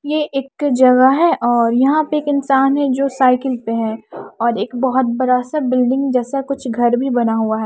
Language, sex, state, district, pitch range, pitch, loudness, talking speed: Hindi, female, Odisha, Nuapada, 240-275 Hz, 260 Hz, -16 LUFS, 210 wpm